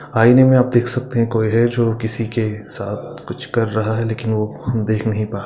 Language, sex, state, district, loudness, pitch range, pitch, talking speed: Hindi, male, Bihar, Gaya, -17 LUFS, 110-120 Hz, 115 Hz, 240 wpm